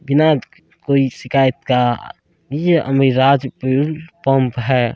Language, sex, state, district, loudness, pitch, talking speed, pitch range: Hindi, male, Bihar, Saharsa, -16 LUFS, 135 Hz, 120 wpm, 130-145 Hz